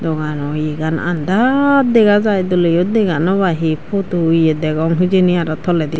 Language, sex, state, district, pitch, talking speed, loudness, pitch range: Chakma, female, Tripura, Dhalai, 175 Hz, 150 wpm, -15 LUFS, 160-195 Hz